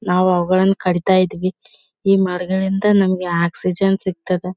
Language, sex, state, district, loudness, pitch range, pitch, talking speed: Kannada, female, Karnataka, Bellary, -17 LUFS, 180-190 Hz, 185 Hz, 120 wpm